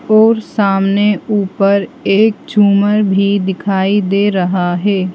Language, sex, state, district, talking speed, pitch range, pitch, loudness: Hindi, female, Madhya Pradesh, Bhopal, 115 wpm, 195-210 Hz, 200 Hz, -13 LUFS